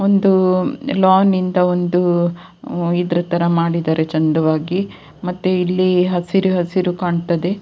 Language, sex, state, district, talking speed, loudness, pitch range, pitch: Kannada, female, Karnataka, Dakshina Kannada, 85 wpm, -17 LUFS, 170-185 Hz, 180 Hz